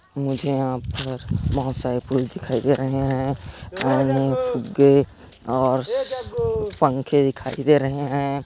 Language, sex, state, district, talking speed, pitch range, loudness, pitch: Chhattisgarhi, male, Chhattisgarh, Korba, 130 wpm, 130-140 Hz, -22 LUFS, 135 Hz